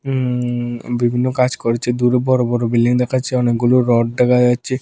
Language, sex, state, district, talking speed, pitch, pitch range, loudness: Bengali, male, Tripura, West Tripura, 160 wpm, 125 Hz, 120-125 Hz, -16 LUFS